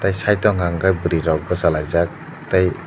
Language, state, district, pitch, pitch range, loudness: Kokborok, Tripura, Dhalai, 90 Hz, 85-95 Hz, -19 LUFS